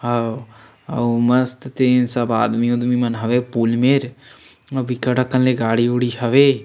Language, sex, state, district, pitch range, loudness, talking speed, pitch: Chhattisgarhi, male, Chhattisgarh, Sarguja, 120-130 Hz, -18 LUFS, 160 wpm, 125 Hz